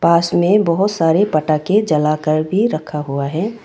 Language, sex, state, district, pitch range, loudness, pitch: Hindi, female, Arunachal Pradesh, Longding, 155-200 Hz, -16 LUFS, 165 Hz